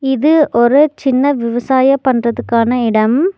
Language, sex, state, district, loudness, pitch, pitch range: Tamil, female, Tamil Nadu, Nilgiris, -13 LUFS, 260 Hz, 235-280 Hz